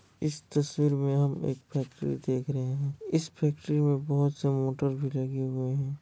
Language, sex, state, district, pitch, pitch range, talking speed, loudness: Hindi, male, Bihar, Kishanganj, 140 Hz, 135-145 Hz, 200 wpm, -30 LUFS